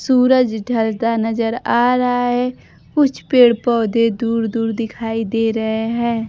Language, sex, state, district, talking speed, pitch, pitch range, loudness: Hindi, female, Bihar, Kaimur, 145 wpm, 230 Hz, 225-245 Hz, -17 LUFS